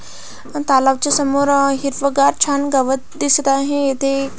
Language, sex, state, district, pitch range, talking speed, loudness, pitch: Marathi, female, Maharashtra, Pune, 275-285 Hz, 110 wpm, -16 LUFS, 275 Hz